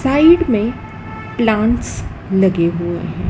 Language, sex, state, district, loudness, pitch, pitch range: Hindi, female, Madhya Pradesh, Dhar, -16 LUFS, 215 Hz, 175-245 Hz